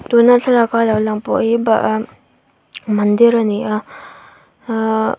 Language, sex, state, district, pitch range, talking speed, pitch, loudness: Mizo, female, Mizoram, Aizawl, 215-235 Hz, 150 wpm, 220 Hz, -15 LUFS